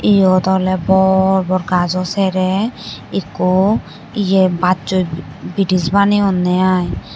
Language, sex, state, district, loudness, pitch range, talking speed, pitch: Chakma, female, Tripura, West Tripura, -15 LUFS, 185-195 Hz, 125 wpm, 185 Hz